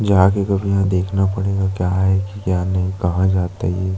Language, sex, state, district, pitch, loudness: Hindi, male, Chhattisgarh, Sukma, 95 Hz, -18 LUFS